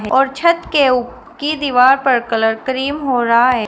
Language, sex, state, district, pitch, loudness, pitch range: Hindi, female, Uttar Pradesh, Shamli, 260 Hz, -15 LUFS, 240-280 Hz